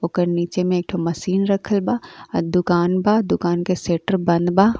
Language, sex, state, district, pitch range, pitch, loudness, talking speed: Bhojpuri, female, Uttar Pradesh, Ghazipur, 175-195 Hz, 180 Hz, -20 LUFS, 200 wpm